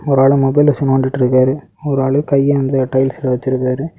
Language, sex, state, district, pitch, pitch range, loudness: Tamil, male, Tamil Nadu, Kanyakumari, 135 Hz, 130-140 Hz, -14 LUFS